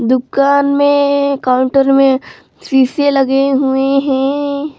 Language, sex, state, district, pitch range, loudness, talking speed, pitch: Hindi, female, Jharkhand, Palamu, 265-280 Hz, -13 LUFS, 100 wpm, 275 Hz